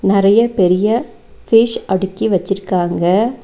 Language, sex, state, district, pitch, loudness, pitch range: Tamil, female, Tamil Nadu, Nilgiris, 200 Hz, -15 LUFS, 190-230 Hz